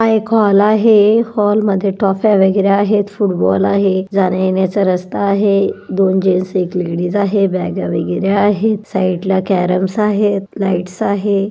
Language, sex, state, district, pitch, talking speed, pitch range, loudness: Marathi, female, Maharashtra, Pune, 195 Hz, 135 wpm, 190-205 Hz, -14 LUFS